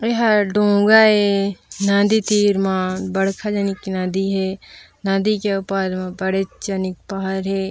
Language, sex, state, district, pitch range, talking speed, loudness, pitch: Chhattisgarhi, female, Chhattisgarh, Raigarh, 190-205 Hz, 150 wpm, -19 LUFS, 195 Hz